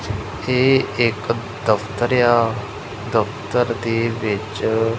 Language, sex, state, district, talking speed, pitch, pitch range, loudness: Punjabi, male, Punjab, Kapurthala, 85 wpm, 115 Hz, 105-120 Hz, -20 LUFS